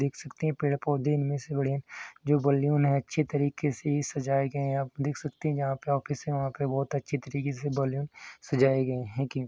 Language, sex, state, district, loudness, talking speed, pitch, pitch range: Hindi, male, Uttar Pradesh, Hamirpur, -29 LUFS, 245 wpm, 140 Hz, 135-145 Hz